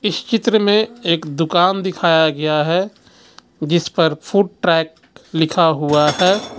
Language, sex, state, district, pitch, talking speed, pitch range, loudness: Hindi, male, Jharkhand, Ranchi, 170 Hz, 135 wpm, 160-200 Hz, -16 LUFS